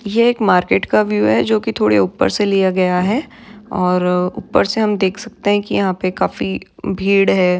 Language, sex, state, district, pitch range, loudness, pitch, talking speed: Hindi, female, Maharashtra, Aurangabad, 180-210 Hz, -16 LUFS, 185 Hz, 215 wpm